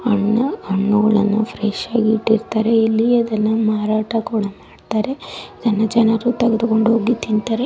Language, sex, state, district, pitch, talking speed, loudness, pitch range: Kannada, female, Karnataka, Dharwad, 220 Hz, 115 wpm, -18 LUFS, 215-230 Hz